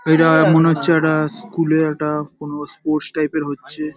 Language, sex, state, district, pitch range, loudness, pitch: Bengali, male, West Bengal, Paschim Medinipur, 150-160 Hz, -17 LUFS, 155 Hz